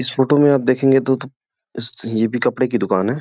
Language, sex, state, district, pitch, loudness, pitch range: Hindi, male, Uttar Pradesh, Gorakhpur, 130 Hz, -17 LUFS, 120-135 Hz